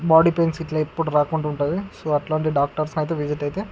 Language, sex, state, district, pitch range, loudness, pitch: Telugu, male, Andhra Pradesh, Guntur, 150-165 Hz, -22 LUFS, 155 Hz